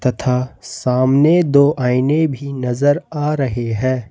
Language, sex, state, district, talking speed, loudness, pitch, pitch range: Hindi, male, Jharkhand, Ranchi, 130 wpm, -16 LUFS, 135 Hz, 125-145 Hz